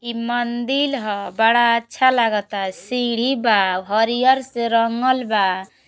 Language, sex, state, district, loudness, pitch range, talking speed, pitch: Bhojpuri, female, Uttar Pradesh, Gorakhpur, -19 LUFS, 210-245 Hz, 120 wpm, 235 Hz